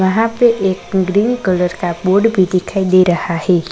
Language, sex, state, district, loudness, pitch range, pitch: Hindi, female, Uttarakhand, Tehri Garhwal, -14 LUFS, 180-200 Hz, 185 Hz